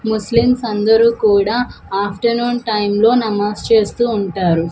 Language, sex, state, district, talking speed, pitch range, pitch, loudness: Telugu, female, Andhra Pradesh, Manyam, 100 wpm, 205-235 Hz, 220 Hz, -15 LUFS